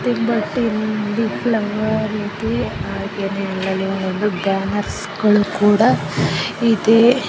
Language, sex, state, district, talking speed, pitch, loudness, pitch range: Kannada, female, Karnataka, Chamarajanagar, 40 wpm, 210 Hz, -18 LUFS, 200-225 Hz